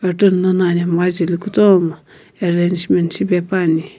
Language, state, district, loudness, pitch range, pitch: Sumi, Nagaland, Kohima, -16 LUFS, 170-185 Hz, 180 Hz